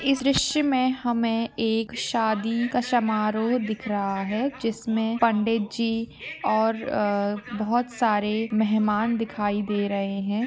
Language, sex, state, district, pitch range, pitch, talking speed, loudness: Hindi, female, Jharkhand, Jamtara, 210-240 Hz, 225 Hz, 125 wpm, -25 LUFS